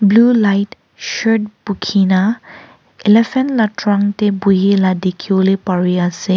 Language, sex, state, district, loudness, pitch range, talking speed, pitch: Nagamese, female, Nagaland, Kohima, -14 LUFS, 190-220 Hz, 130 wpm, 200 Hz